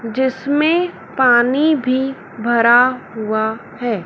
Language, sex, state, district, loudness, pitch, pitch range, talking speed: Hindi, female, Madhya Pradesh, Dhar, -16 LUFS, 245 Hz, 230-265 Hz, 90 wpm